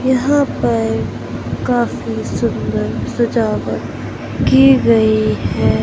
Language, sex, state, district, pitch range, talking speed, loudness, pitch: Hindi, male, Madhya Pradesh, Katni, 110-125 Hz, 80 wpm, -16 LUFS, 115 Hz